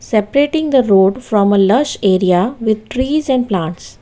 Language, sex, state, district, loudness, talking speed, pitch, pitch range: English, female, Gujarat, Valsad, -14 LUFS, 165 wpm, 215 Hz, 195-260 Hz